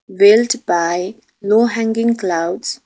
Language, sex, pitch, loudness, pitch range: English, female, 220 Hz, -15 LUFS, 180-230 Hz